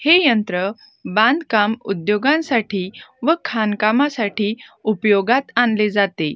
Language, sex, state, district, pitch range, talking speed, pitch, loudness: Marathi, female, Maharashtra, Gondia, 205-255 Hz, 85 wpm, 215 Hz, -18 LUFS